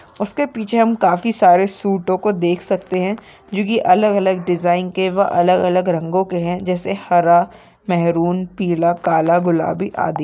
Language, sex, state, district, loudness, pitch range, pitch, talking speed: Hindi, female, Maharashtra, Nagpur, -17 LUFS, 175-195 Hz, 185 Hz, 170 wpm